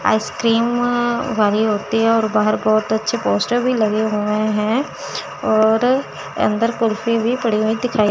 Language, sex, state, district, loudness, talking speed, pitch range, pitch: Hindi, female, Chandigarh, Chandigarh, -18 LUFS, 155 wpm, 215-240 Hz, 220 Hz